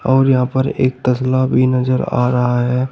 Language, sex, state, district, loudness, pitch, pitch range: Hindi, male, Uttar Pradesh, Shamli, -15 LUFS, 130 Hz, 125-130 Hz